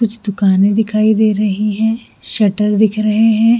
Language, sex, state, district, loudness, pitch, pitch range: Hindi, female, Jharkhand, Jamtara, -14 LUFS, 215 Hz, 210-220 Hz